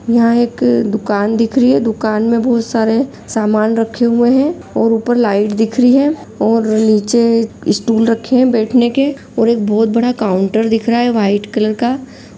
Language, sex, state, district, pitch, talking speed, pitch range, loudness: Angika, female, Bihar, Supaul, 230 Hz, 185 wpm, 220-240 Hz, -13 LUFS